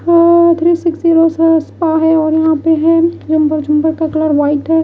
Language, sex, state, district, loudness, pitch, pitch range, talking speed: Hindi, female, Odisha, Malkangiri, -12 LUFS, 320 Hz, 315-335 Hz, 135 wpm